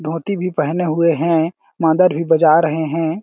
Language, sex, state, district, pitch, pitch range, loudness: Hindi, male, Chhattisgarh, Balrampur, 165 Hz, 160-170 Hz, -16 LUFS